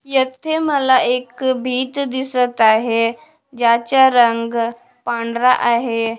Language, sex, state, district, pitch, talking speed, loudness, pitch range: Marathi, female, Maharashtra, Washim, 245 Hz, 95 wpm, -16 LUFS, 235-265 Hz